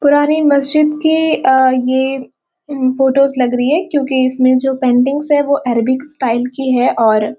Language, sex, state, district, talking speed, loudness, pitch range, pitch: Hindi, female, Chhattisgarh, Korba, 170 wpm, -13 LUFS, 255-290 Hz, 265 Hz